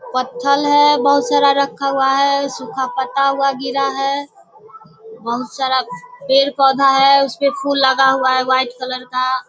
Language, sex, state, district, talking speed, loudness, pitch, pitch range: Hindi, female, Bihar, Sitamarhi, 150 wpm, -15 LUFS, 275 Hz, 260-280 Hz